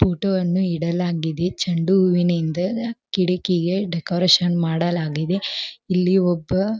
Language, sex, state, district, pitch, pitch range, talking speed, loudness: Kannada, female, Karnataka, Belgaum, 180 Hz, 170-190 Hz, 80 wpm, -20 LUFS